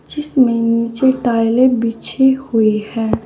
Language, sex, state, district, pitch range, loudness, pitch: Hindi, female, Uttar Pradesh, Saharanpur, 230-260 Hz, -15 LUFS, 235 Hz